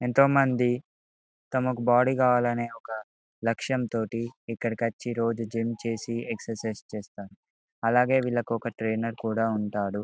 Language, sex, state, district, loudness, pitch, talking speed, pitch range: Telugu, male, Telangana, Karimnagar, -27 LUFS, 115 Hz, 130 wpm, 110-120 Hz